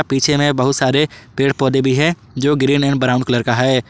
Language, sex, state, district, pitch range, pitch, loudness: Hindi, male, Jharkhand, Garhwa, 125-145 Hz, 135 Hz, -16 LUFS